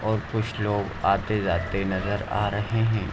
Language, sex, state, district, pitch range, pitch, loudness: Hindi, male, Uttar Pradesh, Ghazipur, 95-110 Hz, 105 Hz, -26 LUFS